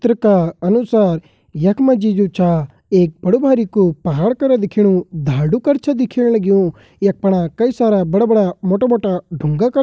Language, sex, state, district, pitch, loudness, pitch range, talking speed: Garhwali, male, Uttarakhand, Uttarkashi, 200 Hz, -15 LUFS, 175-235 Hz, 160 wpm